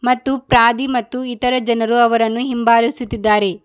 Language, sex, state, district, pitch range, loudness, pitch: Kannada, female, Karnataka, Bidar, 230-250 Hz, -16 LUFS, 240 Hz